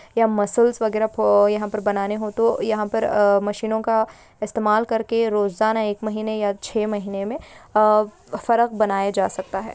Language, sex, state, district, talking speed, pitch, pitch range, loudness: Hindi, female, Maharashtra, Sindhudurg, 180 wpm, 215 Hz, 205-220 Hz, -21 LUFS